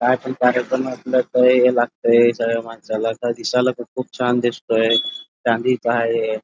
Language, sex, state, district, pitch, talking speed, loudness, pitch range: Marathi, male, Karnataka, Belgaum, 120 Hz, 170 wpm, -19 LUFS, 115-125 Hz